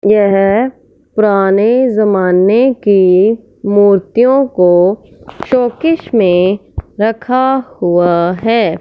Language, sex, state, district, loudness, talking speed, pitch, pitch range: Hindi, male, Punjab, Fazilka, -11 LUFS, 75 wpm, 210 Hz, 190-245 Hz